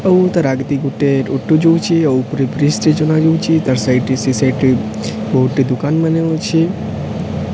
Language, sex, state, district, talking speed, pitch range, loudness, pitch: Odia, male, Odisha, Sambalpur, 185 wpm, 130-160 Hz, -15 LUFS, 145 Hz